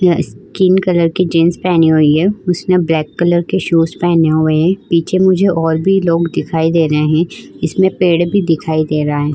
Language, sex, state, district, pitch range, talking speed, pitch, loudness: Hindi, female, Uttar Pradesh, Varanasi, 160-185 Hz, 205 wpm, 170 Hz, -13 LUFS